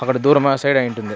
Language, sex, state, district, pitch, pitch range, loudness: Telugu, male, Andhra Pradesh, Anantapur, 135 Hz, 125-140 Hz, -16 LUFS